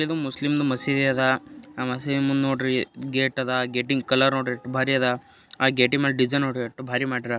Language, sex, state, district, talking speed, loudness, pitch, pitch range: Kannada, male, Karnataka, Gulbarga, 185 wpm, -23 LUFS, 130 Hz, 125-135 Hz